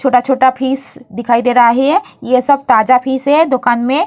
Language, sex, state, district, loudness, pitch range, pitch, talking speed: Hindi, female, Bihar, Vaishali, -12 LUFS, 245-275 Hz, 260 Hz, 205 wpm